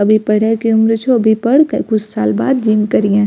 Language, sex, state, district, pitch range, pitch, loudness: Maithili, female, Bihar, Purnia, 215-230 Hz, 220 Hz, -13 LUFS